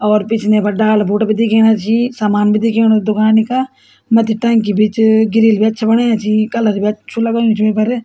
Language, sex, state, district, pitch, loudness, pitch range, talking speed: Garhwali, female, Uttarakhand, Tehri Garhwal, 220 Hz, -13 LUFS, 215-225 Hz, 215 wpm